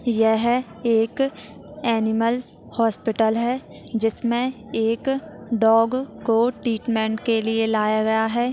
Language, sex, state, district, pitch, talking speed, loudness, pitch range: Hindi, female, Chhattisgarh, Jashpur, 225 Hz, 105 wpm, -21 LUFS, 225-240 Hz